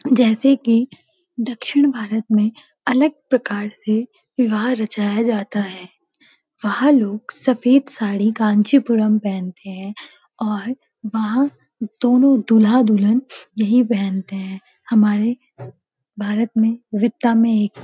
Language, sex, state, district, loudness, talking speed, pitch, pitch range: Hindi, female, Uttarakhand, Uttarkashi, -18 LUFS, 110 wpm, 225 Hz, 210-250 Hz